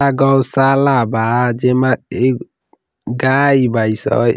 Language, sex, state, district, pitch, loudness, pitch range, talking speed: Hindi, male, Uttar Pradesh, Ghazipur, 130 Hz, -14 LUFS, 120-135 Hz, 110 wpm